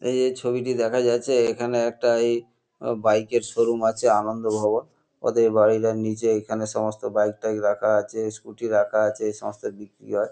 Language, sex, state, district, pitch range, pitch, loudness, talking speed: Bengali, male, West Bengal, North 24 Parganas, 110-120 Hz, 110 Hz, -23 LUFS, 175 wpm